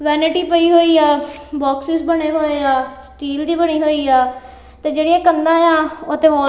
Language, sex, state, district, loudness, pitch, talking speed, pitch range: Punjabi, female, Punjab, Kapurthala, -15 LUFS, 305 Hz, 130 wpm, 285-330 Hz